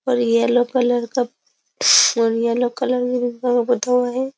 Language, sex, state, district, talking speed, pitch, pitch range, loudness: Hindi, female, Uttar Pradesh, Jyotiba Phule Nagar, 125 wpm, 245 Hz, 240-250 Hz, -18 LUFS